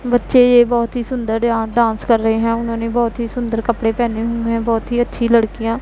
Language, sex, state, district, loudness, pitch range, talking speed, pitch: Hindi, female, Punjab, Pathankot, -16 LUFS, 230-240 Hz, 235 wpm, 235 Hz